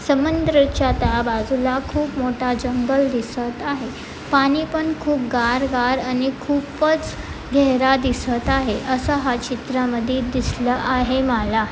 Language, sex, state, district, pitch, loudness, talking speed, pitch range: Marathi, female, Maharashtra, Pune, 260 Hz, -20 LUFS, 130 wpm, 245-280 Hz